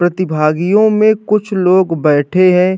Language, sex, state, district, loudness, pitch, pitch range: Hindi, male, Uttar Pradesh, Hamirpur, -12 LUFS, 185 Hz, 165-210 Hz